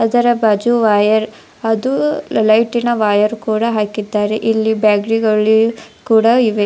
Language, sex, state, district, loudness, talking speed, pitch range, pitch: Kannada, female, Karnataka, Dharwad, -14 LUFS, 110 wpm, 215-230 Hz, 220 Hz